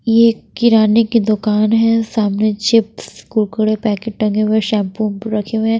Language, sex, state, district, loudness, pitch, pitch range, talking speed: Hindi, female, Bihar, Patna, -15 LUFS, 220 Hz, 215-225 Hz, 175 wpm